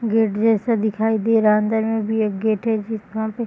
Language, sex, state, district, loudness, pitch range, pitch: Hindi, female, Bihar, Bhagalpur, -20 LUFS, 215-225 Hz, 220 Hz